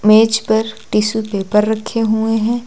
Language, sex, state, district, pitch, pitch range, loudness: Hindi, female, Uttar Pradesh, Lucknow, 220 Hz, 215-225 Hz, -16 LUFS